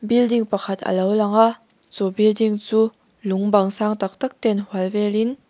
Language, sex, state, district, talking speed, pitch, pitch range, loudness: Mizo, female, Mizoram, Aizawl, 195 wpm, 210 Hz, 200-225 Hz, -20 LUFS